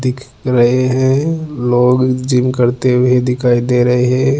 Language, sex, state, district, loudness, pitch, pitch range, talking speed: Hindi, male, Rajasthan, Jaipur, -13 LUFS, 125 Hz, 125-130 Hz, 150 wpm